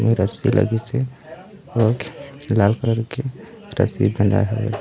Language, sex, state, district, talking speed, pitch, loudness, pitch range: Chhattisgarhi, male, Chhattisgarh, Raigarh, 125 wpm, 115 Hz, -20 LUFS, 110-130 Hz